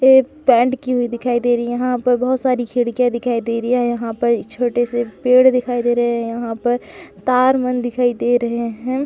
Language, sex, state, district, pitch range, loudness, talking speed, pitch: Hindi, female, Chhattisgarh, Sukma, 235-250 Hz, -17 LUFS, 230 wpm, 245 Hz